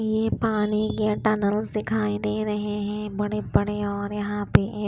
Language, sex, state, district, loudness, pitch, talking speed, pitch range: Hindi, female, Bihar, Kaimur, -25 LUFS, 210 Hz, 160 wpm, 205-215 Hz